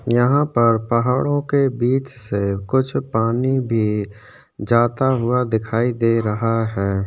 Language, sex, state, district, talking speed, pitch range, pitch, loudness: Hindi, male, Chhattisgarh, Sukma, 125 wpm, 110-130 Hz, 115 Hz, -19 LUFS